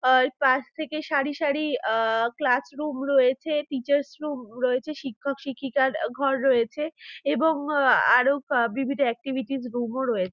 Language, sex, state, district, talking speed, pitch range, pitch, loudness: Bengali, female, West Bengal, Dakshin Dinajpur, 135 wpm, 255-290 Hz, 270 Hz, -25 LUFS